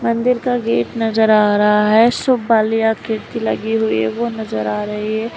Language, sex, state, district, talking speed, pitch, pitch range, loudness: Hindi, female, Uttar Pradesh, Lalitpur, 200 wpm, 220 Hz, 205-230 Hz, -16 LUFS